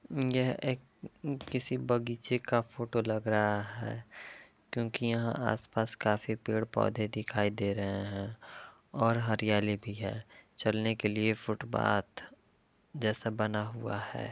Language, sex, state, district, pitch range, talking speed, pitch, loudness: Hindi, male, Uttar Pradesh, Varanasi, 105-120 Hz, 125 wpm, 110 Hz, -33 LUFS